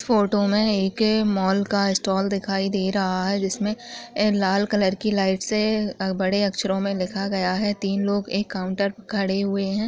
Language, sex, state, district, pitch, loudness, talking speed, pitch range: Hindi, female, Chhattisgarh, Raigarh, 200 Hz, -23 LUFS, 190 wpm, 190-210 Hz